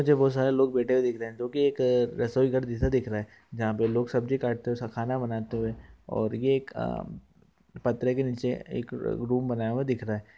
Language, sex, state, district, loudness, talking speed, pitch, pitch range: Hindi, male, Andhra Pradesh, Anantapur, -28 LUFS, 215 wpm, 120 Hz, 115-130 Hz